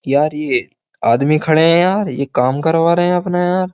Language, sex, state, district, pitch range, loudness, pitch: Hindi, male, Uttar Pradesh, Jyotiba Phule Nagar, 145-180 Hz, -15 LUFS, 165 Hz